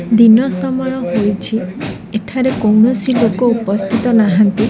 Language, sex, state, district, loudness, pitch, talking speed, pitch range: Odia, female, Odisha, Khordha, -14 LUFS, 230 Hz, 100 wpm, 215-250 Hz